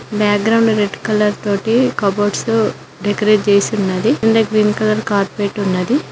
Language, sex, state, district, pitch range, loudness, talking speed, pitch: Telugu, female, Telangana, Mahabubabad, 205-220 Hz, -15 LUFS, 135 wpm, 210 Hz